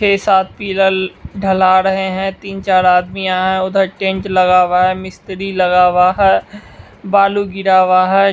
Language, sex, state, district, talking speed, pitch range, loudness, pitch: Hindi, male, Bihar, West Champaran, 160 wpm, 185-195 Hz, -13 LUFS, 190 Hz